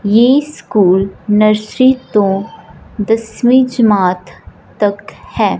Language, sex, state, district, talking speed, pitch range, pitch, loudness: Hindi, female, Punjab, Fazilka, 85 wpm, 195-240 Hz, 215 Hz, -13 LUFS